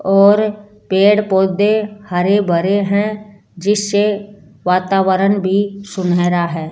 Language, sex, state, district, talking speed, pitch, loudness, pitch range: Hindi, female, Rajasthan, Jaipur, 105 wpm, 200 Hz, -15 LUFS, 190-205 Hz